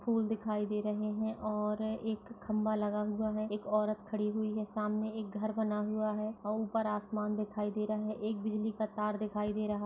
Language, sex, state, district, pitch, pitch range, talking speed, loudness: Hindi, female, Bihar, Madhepura, 215 Hz, 210-215 Hz, 225 wpm, -35 LUFS